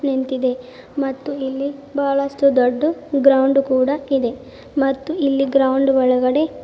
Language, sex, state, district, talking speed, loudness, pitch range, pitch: Kannada, female, Karnataka, Bidar, 110 wpm, -18 LUFS, 260-280 Hz, 275 Hz